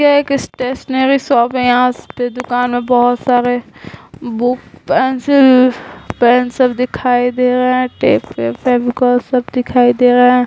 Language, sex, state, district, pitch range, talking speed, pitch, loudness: Hindi, female, Bihar, Vaishali, 245-255 Hz, 140 wpm, 250 Hz, -13 LUFS